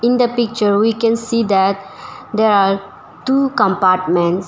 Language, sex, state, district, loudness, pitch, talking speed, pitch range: English, female, Arunachal Pradesh, Papum Pare, -15 LUFS, 210 Hz, 145 wpm, 195-230 Hz